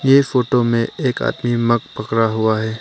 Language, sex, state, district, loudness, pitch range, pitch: Hindi, male, Arunachal Pradesh, Papum Pare, -18 LUFS, 110-125 Hz, 115 Hz